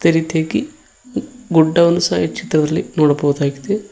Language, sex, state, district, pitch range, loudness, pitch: Kannada, male, Karnataka, Koppal, 155-205 Hz, -17 LUFS, 165 Hz